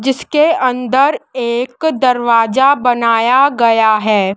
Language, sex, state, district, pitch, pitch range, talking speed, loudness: Hindi, female, Madhya Pradesh, Dhar, 250 Hz, 230-270 Hz, 95 wpm, -13 LUFS